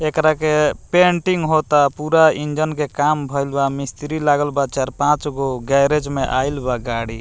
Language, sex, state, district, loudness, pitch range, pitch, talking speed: Bhojpuri, male, Bihar, Muzaffarpur, -18 LUFS, 140-155 Hz, 145 Hz, 160 wpm